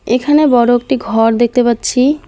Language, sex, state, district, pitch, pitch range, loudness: Bengali, female, West Bengal, Alipurduar, 245 Hz, 235-265 Hz, -12 LUFS